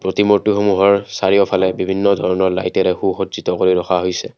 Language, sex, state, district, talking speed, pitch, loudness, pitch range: Assamese, male, Assam, Kamrup Metropolitan, 125 wpm, 95 Hz, -16 LUFS, 95-100 Hz